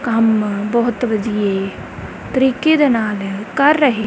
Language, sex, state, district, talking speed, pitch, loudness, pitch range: Punjabi, female, Punjab, Kapurthala, 120 wpm, 225 Hz, -16 LUFS, 210-260 Hz